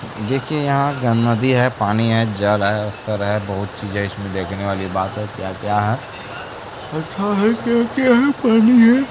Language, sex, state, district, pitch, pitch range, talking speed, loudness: Hindi, male, Bihar, Kishanganj, 115 Hz, 100-160 Hz, 185 wpm, -18 LUFS